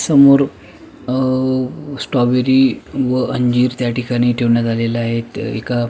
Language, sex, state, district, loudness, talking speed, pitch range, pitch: Marathi, male, Maharashtra, Pune, -16 LUFS, 110 wpm, 120-130 Hz, 125 Hz